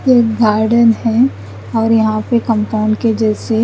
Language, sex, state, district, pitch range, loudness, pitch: Hindi, female, Chandigarh, Chandigarh, 215-230 Hz, -14 LUFS, 225 Hz